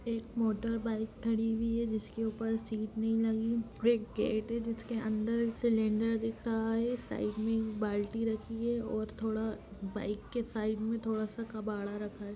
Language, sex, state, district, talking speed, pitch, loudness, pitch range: Hindi, female, Bihar, Sitamarhi, 185 wpm, 225 Hz, -34 LUFS, 215-230 Hz